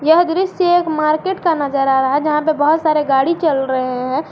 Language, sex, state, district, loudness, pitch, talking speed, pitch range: Hindi, female, Jharkhand, Garhwa, -16 LUFS, 305 Hz, 235 wpm, 270-335 Hz